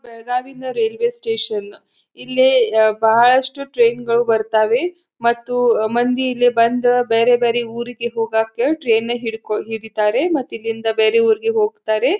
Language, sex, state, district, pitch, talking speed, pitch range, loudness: Kannada, female, Karnataka, Belgaum, 240 Hz, 130 wpm, 225-260 Hz, -17 LUFS